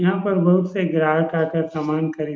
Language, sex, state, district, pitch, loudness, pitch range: Hindi, male, Bihar, Saran, 160 Hz, -20 LUFS, 155-185 Hz